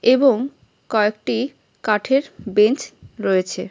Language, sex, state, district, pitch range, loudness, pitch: Bengali, female, West Bengal, Jhargram, 210-265 Hz, -20 LUFS, 225 Hz